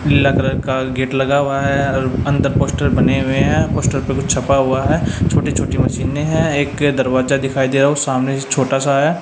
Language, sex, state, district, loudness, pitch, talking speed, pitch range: Hindi, male, Haryana, Jhajjar, -16 LUFS, 135 Hz, 230 wpm, 130-140 Hz